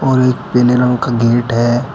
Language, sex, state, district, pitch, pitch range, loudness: Hindi, male, Uttar Pradesh, Shamli, 125 Hz, 120-125 Hz, -13 LUFS